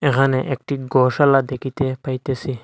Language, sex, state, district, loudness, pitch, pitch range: Bengali, male, Assam, Hailakandi, -19 LUFS, 135 Hz, 130-135 Hz